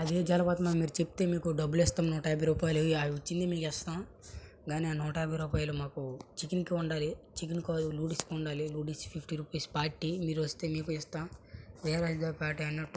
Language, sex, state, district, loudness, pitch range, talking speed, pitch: Telugu, male, Andhra Pradesh, Srikakulam, -33 LUFS, 150-165 Hz, 170 wpm, 160 Hz